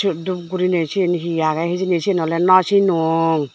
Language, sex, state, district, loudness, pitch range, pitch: Chakma, female, Tripura, Dhalai, -18 LUFS, 165-185 Hz, 175 Hz